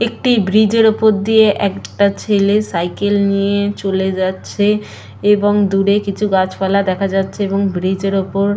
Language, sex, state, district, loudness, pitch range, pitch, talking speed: Bengali, female, West Bengal, Purulia, -15 LUFS, 195-205 Hz, 200 Hz, 145 wpm